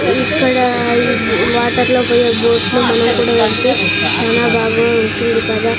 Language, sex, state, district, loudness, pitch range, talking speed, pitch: Telugu, female, Andhra Pradesh, Sri Satya Sai, -13 LUFS, 230-245 Hz, 145 wpm, 235 Hz